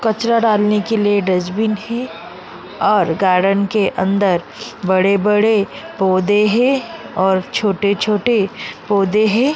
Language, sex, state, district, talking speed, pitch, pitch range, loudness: Hindi, female, Goa, North and South Goa, 120 wpm, 205 Hz, 195-220 Hz, -16 LUFS